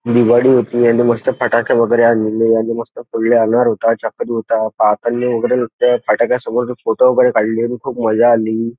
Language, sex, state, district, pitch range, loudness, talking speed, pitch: Marathi, male, Maharashtra, Nagpur, 115-120 Hz, -14 LUFS, 155 wpm, 120 Hz